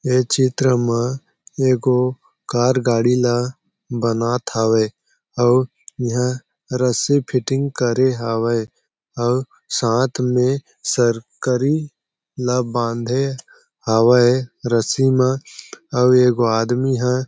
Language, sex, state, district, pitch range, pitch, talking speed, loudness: Chhattisgarhi, male, Chhattisgarh, Jashpur, 120-130 Hz, 125 Hz, 95 wpm, -19 LUFS